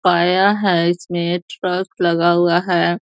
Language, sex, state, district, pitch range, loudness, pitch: Hindi, female, Bihar, East Champaran, 175-180 Hz, -17 LUFS, 175 Hz